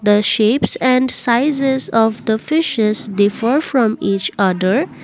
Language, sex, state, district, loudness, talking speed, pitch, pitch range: English, female, Assam, Kamrup Metropolitan, -16 LUFS, 130 wpm, 225 Hz, 205-260 Hz